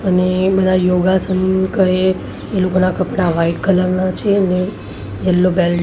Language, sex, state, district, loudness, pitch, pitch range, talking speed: Gujarati, female, Maharashtra, Mumbai Suburban, -16 LUFS, 185 Hz, 180-190 Hz, 155 wpm